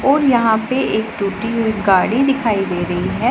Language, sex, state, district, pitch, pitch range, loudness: Hindi, female, Punjab, Pathankot, 220 Hz, 200-245 Hz, -17 LUFS